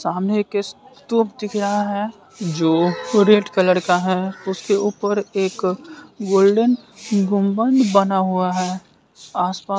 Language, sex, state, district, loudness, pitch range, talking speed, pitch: Hindi, female, Bihar, West Champaran, -19 LUFS, 185-210 Hz, 115 wpm, 200 Hz